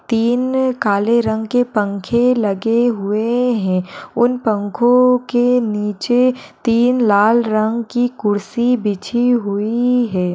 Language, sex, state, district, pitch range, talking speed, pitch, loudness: Hindi, female, Uttar Pradesh, Budaun, 210-245 Hz, 115 wpm, 235 Hz, -16 LUFS